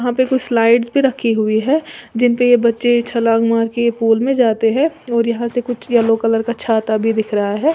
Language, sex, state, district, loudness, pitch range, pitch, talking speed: Hindi, female, Uttar Pradesh, Lalitpur, -16 LUFS, 225-245 Hz, 235 Hz, 240 wpm